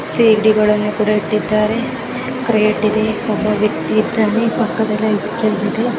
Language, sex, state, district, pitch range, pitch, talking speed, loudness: Kannada, female, Karnataka, Mysore, 210-225 Hz, 215 Hz, 120 wpm, -16 LUFS